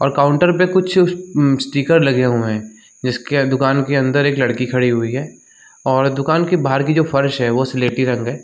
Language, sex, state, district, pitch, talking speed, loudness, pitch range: Hindi, male, Jharkhand, Sahebganj, 135 Hz, 215 wpm, -16 LUFS, 125-145 Hz